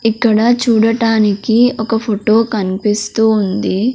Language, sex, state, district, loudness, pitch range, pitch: Telugu, female, Andhra Pradesh, Sri Satya Sai, -13 LUFS, 210-230 Hz, 220 Hz